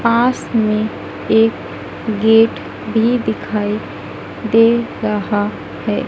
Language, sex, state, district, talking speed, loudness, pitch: Hindi, female, Madhya Pradesh, Dhar, 100 wpm, -16 LUFS, 215 Hz